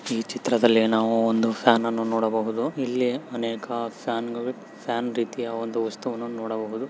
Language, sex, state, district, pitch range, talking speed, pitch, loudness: Kannada, male, Karnataka, Mysore, 115-120 Hz, 140 wpm, 115 Hz, -25 LUFS